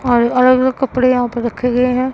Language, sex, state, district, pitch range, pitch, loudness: Hindi, female, Punjab, Pathankot, 245-255 Hz, 250 Hz, -14 LUFS